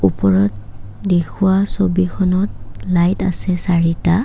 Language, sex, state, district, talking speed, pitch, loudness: Assamese, female, Assam, Kamrup Metropolitan, 85 wpm, 180 Hz, -17 LUFS